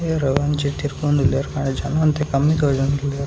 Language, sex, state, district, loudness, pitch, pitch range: Tulu, male, Karnataka, Dakshina Kannada, -20 LUFS, 140 Hz, 140-150 Hz